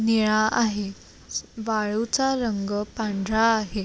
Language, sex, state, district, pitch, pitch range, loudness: Marathi, female, Maharashtra, Sindhudurg, 215 Hz, 210-225 Hz, -24 LUFS